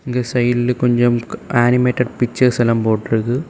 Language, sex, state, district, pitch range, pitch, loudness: Tamil, male, Tamil Nadu, Kanyakumari, 120-125 Hz, 120 Hz, -17 LUFS